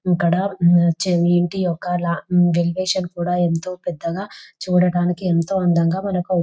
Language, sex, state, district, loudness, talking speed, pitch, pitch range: Telugu, female, Telangana, Nalgonda, -19 LUFS, 120 wpm, 175 Hz, 170-185 Hz